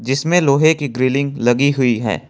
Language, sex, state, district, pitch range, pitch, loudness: Hindi, male, Jharkhand, Ranchi, 120-140 Hz, 135 Hz, -16 LUFS